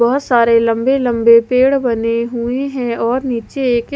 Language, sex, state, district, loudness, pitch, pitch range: Hindi, female, Haryana, Charkhi Dadri, -14 LUFS, 240 Hz, 230-260 Hz